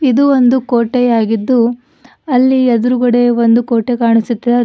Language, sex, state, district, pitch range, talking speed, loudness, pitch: Kannada, female, Karnataka, Bidar, 235-255 Hz, 115 wpm, -12 LUFS, 245 Hz